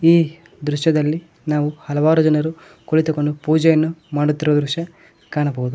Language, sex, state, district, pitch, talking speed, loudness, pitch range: Kannada, male, Karnataka, Koppal, 155 Hz, 105 wpm, -19 LUFS, 150-160 Hz